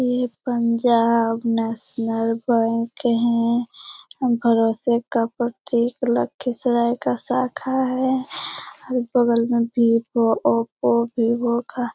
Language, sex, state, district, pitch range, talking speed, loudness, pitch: Hindi, female, Bihar, Lakhisarai, 230-245 Hz, 115 wpm, -21 LUFS, 235 Hz